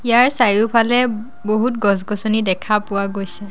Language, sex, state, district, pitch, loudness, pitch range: Assamese, female, Assam, Sonitpur, 215 Hz, -17 LUFS, 205-235 Hz